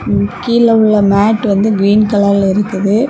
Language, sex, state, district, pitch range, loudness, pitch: Tamil, female, Tamil Nadu, Kanyakumari, 200-220 Hz, -11 LUFS, 205 Hz